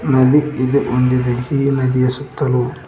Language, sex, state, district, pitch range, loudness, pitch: Kannada, male, Karnataka, Koppal, 125-140 Hz, -16 LUFS, 130 Hz